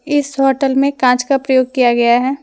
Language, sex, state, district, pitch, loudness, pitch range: Hindi, female, Jharkhand, Deoghar, 270 Hz, -14 LUFS, 250-275 Hz